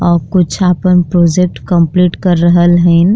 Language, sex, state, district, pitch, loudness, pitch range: Bhojpuri, female, Uttar Pradesh, Deoria, 175 Hz, -10 LUFS, 170-180 Hz